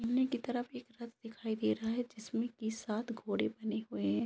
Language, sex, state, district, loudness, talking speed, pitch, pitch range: Hindi, female, Bihar, Saran, -38 LUFS, 225 wpm, 230 Hz, 220-240 Hz